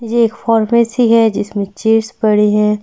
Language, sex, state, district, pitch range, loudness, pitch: Hindi, female, Delhi, New Delhi, 210-230 Hz, -13 LUFS, 225 Hz